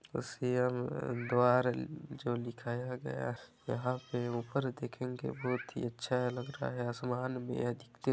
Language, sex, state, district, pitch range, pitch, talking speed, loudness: Hindi, male, Chhattisgarh, Balrampur, 120-125 Hz, 125 Hz, 140 wpm, -36 LUFS